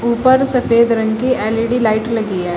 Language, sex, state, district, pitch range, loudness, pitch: Hindi, female, Uttar Pradesh, Shamli, 220-245 Hz, -15 LUFS, 230 Hz